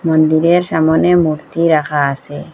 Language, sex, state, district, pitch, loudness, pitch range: Bengali, female, Assam, Hailakandi, 160 Hz, -13 LUFS, 150-170 Hz